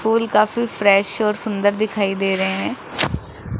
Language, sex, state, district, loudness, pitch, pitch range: Hindi, female, Rajasthan, Jaipur, -19 LUFS, 210 Hz, 200-220 Hz